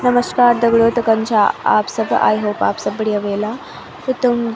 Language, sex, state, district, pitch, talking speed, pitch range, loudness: Garhwali, female, Uttarakhand, Tehri Garhwal, 230 Hz, 210 wpm, 215-245 Hz, -16 LUFS